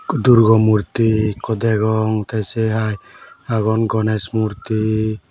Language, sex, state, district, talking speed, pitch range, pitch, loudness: Chakma, male, Tripura, West Tripura, 115 wpm, 110-115 Hz, 110 Hz, -17 LUFS